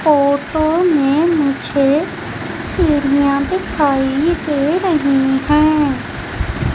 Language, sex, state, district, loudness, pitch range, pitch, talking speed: Hindi, female, Madhya Pradesh, Umaria, -15 LUFS, 280-315 Hz, 295 Hz, 70 wpm